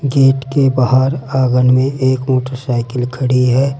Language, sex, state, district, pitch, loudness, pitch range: Hindi, male, Uttar Pradesh, Saharanpur, 130 Hz, -14 LUFS, 125-135 Hz